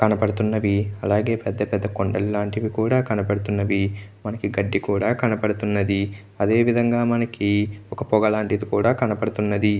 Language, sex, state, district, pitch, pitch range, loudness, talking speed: Telugu, male, Andhra Pradesh, Chittoor, 105 Hz, 100-110 Hz, -22 LUFS, 105 wpm